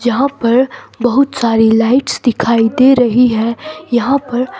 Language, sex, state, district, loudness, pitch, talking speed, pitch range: Hindi, female, Himachal Pradesh, Shimla, -13 LUFS, 245 Hz, 145 wpm, 230-265 Hz